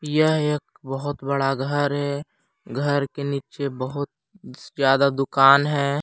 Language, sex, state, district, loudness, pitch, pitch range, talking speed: Hindi, male, Jharkhand, Palamu, -22 LUFS, 140 Hz, 135-145 Hz, 130 wpm